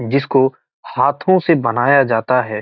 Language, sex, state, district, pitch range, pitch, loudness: Hindi, male, Bihar, Gopalganj, 120-140 Hz, 130 Hz, -15 LUFS